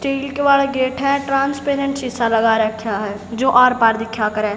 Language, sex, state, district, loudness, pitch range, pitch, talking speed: Hindi, female, Haryana, Rohtak, -17 LUFS, 225-275 Hz, 250 Hz, 195 wpm